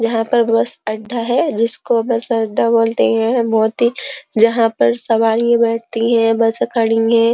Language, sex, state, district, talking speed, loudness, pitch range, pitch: Hindi, female, Uttar Pradesh, Jyotiba Phule Nagar, 170 wpm, -15 LUFS, 225-235 Hz, 230 Hz